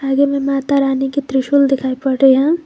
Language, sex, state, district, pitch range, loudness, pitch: Hindi, female, Jharkhand, Garhwa, 270-280 Hz, -15 LUFS, 275 Hz